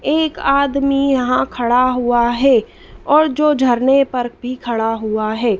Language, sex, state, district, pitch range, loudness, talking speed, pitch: Hindi, female, Madhya Pradesh, Dhar, 240-275 Hz, -16 LUFS, 150 wpm, 255 Hz